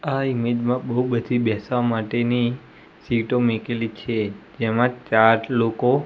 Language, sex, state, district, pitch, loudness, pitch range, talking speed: Gujarati, male, Gujarat, Gandhinagar, 120 Hz, -22 LUFS, 115-125 Hz, 130 wpm